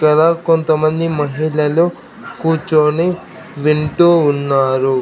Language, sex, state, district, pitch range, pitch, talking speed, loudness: Telugu, male, Andhra Pradesh, Krishna, 150-170 Hz, 155 Hz, 70 wpm, -15 LUFS